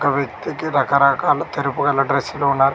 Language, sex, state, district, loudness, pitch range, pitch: Telugu, male, Telangana, Mahabubabad, -18 LUFS, 140-145 Hz, 140 Hz